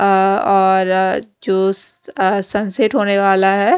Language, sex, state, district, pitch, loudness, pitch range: Hindi, female, Punjab, Kapurthala, 195 Hz, -15 LUFS, 190-205 Hz